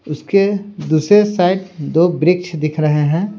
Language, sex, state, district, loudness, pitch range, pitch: Hindi, male, Bihar, Patna, -15 LUFS, 155-195 Hz, 175 Hz